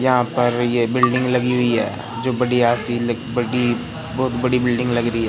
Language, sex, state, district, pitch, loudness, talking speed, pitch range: Hindi, male, Madhya Pradesh, Katni, 120 Hz, -19 LUFS, 205 wpm, 120-125 Hz